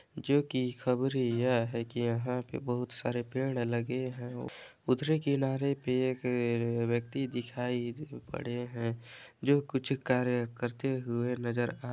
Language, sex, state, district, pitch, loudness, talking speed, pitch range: Hindi, male, Chhattisgarh, Balrampur, 125 Hz, -33 LUFS, 150 wpm, 120-130 Hz